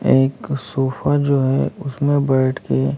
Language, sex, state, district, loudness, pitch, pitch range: Hindi, male, Maharashtra, Gondia, -19 LUFS, 135 Hz, 130-140 Hz